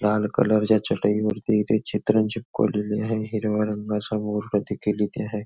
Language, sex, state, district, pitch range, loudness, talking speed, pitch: Marathi, male, Maharashtra, Nagpur, 105-110 Hz, -24 LUFS, 155 wpm, 105 Hz